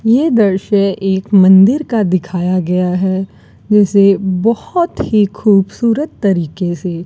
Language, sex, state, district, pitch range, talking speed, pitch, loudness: Hindi, female, Rajasthan, Bikaner, 185-215 Hz, 125 wpm, 195 Hz, -13 LUFS